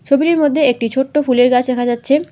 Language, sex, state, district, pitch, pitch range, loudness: Bengali, female, West Bengal, Alipurduar, 265 Hz, 245-295 Hz, -14 LUFS